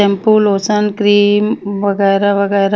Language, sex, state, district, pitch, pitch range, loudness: Hindi, female, Haryana, Charkhi Dadri, 205 Hz, 200-210 Hz, -13 LUFS